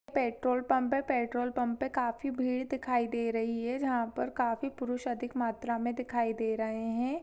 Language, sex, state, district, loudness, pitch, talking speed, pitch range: Hindi, female, Chhattisgarh, Sarguja, -32 LUFS, 245 Hz, 190 wpm, 235-255 Hz